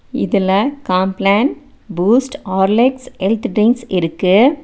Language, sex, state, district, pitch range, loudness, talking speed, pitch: Tamil, female, Tamil Nadu, Nilgiris, 190-255 Hz, -15 LUFS, 90 wpm, 210 Hz